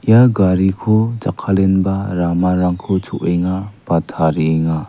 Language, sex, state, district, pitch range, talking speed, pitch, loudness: Garo, male, Meghalaya, West Garo Hills, 85-100 Hz, 85 wpm, 95 Hz, -16 LUFS